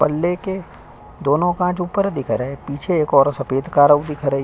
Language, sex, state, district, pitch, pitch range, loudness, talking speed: Hindi, male, Uttar Pradesh, Hamirpur, 150 Hz, 140-175 Hz, -19 LUFS, 200 wpm